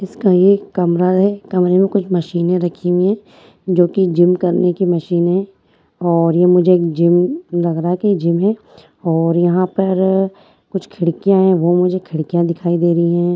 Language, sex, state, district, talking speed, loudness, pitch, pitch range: Hindi, female, Bihar, Madhepura, 170 wpm, -15 LUFS, 180 Hz, 175-190 Hz